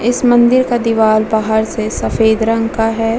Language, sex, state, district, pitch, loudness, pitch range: Hindi, female, Bihar, Vaishali, 225 Hz, -13 LUFS, 220-240 Hz